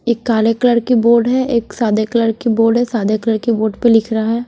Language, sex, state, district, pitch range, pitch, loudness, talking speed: Hindi, female, Bihar, West Champaran, 220-235 Hz, 230 Hz, -14 LUFS, 255 wpm